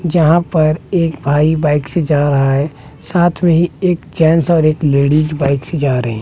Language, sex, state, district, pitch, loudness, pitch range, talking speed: Hindi, male, Bihar, West Champaran, 155 Hz, -14 LUFS, 145-170 Hz, 205 wpm